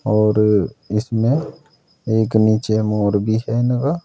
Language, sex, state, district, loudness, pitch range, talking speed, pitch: Hindi, male, Uttar Pradesh, Saharanpur, -18 LUFS, 105-135 Hz, 120 wpm, 110 Hz